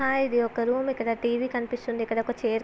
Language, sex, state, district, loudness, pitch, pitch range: Telugu, female, Andhra Pradesh, Visakhapatnam, -27 LUFS, 240 Hz, 230-250 Hz